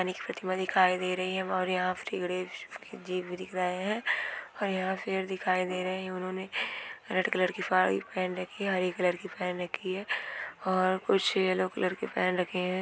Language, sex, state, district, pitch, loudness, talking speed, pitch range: Hindi, female, Bihar, Gopalganj, 185 Hz, -31 LUFS, 205 wpm, 185-190 Hz